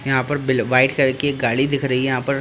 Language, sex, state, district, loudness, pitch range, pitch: Hindi, male, Bihar, Jahanabad, -19 LUFS, 130-140 Hz, 135 Hz